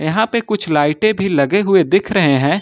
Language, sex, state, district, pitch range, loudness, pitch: Hindi, male, Uttar Pradesh, Lucknow, 150-210 Hz, -15 LUFS, 190 Hz